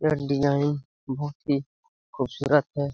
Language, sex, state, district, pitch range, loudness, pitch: Hindi, male, Bihar, Jamui, 140-145 Hz, -26 LUFS, 140 Hz